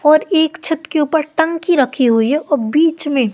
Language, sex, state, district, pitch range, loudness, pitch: Hindi, female, Madhya Pradesh, Katni, 280-320 Hz, -15 LUFS, 305 Hz